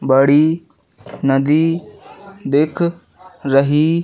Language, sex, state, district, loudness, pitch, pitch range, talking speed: Hindi, male, Madhya Pradesh, Katni, -16 LUFS, 155 Hz, 140-170 Hz, 60 wpm